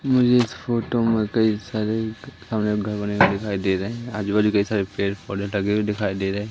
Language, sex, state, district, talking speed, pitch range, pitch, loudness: Hindi, male, Madhya Pradesh, Katni, 240 wpm, 100-115 Hz, 105 Hz, -22 LUFS